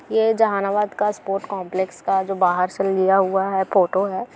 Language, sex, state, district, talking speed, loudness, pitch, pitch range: Hindi, female, Bihar, Gaya, 190 wpm, -20 LUFS, 195 Hz, 190-205 Hz